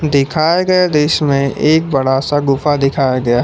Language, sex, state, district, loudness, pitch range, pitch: Hindi, male, Jharkhand, Palamu, -13 LUFS, 135-155 Hz, 145 Hz